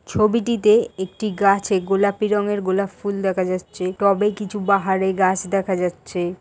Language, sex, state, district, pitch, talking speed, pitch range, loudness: Bengali, female, West Bengal, Paschim Medinipur, 195 Hz, 140 wpm, 185-205 Hz, -20 LUFS